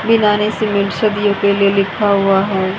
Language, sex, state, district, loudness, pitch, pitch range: Hindi, female, Haryana, Jhajjar, -14 LUFS, 200 Hz, 195-210 Hz